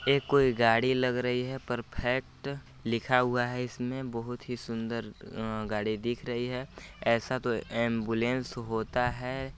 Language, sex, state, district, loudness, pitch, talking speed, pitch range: Hindi, male, Chhattisgarh, Balrampur, -30 LUFS, 125 Hz, 150 wpm, 115-125 Hz